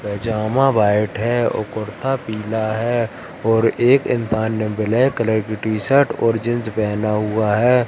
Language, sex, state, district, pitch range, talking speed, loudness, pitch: Hindi, male, Madhya Pradesh, Katni, 110-120 Hz, 160 wpm, -19 LUFS, 110 Hz